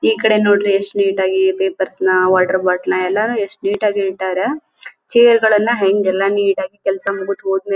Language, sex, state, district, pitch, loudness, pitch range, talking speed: Kannada, female, Karnataka, Dharwad, 195 Hz, -15 LUFS, 190-210 Hz, 195 wpm